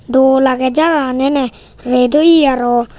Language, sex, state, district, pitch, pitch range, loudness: Chakma, male, Tripura, Unakoti, 265 Hz, 250-285 Hz, -12 LUFS